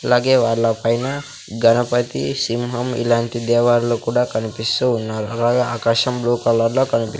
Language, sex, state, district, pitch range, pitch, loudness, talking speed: Telugu, male, Andhra Pradesh, Sri Satya Sai, 115-125 Hz, 120 Hz, -18 LUFS, 125 wpm